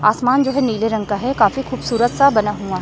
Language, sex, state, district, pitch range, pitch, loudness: Hindi, female, Chhattisgarh, Raipur, 210-265 Hz, 230 Hz, -17 LUFS